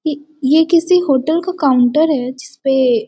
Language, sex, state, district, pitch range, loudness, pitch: Hindi, female, Bihar, Sitamarhi, 260-320 Hz, -14 LUFS, 290 Hz